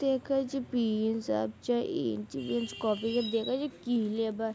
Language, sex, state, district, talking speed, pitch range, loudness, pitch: Magahi, female, Bihar, Jamui, 170 wpm, 210-250 Hz, -31 LUFS, 225 Hz